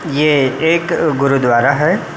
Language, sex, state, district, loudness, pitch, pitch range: Chhattisgarhi, male, Chhattisgarh, Bilaspur, -14 LUFS, 145 Hz, 135-160 Hz